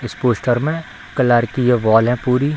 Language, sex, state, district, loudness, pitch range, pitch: Hindi, female, Bihar, Samastipur, -17 LUFS, 120-130 Hz, 125 Hz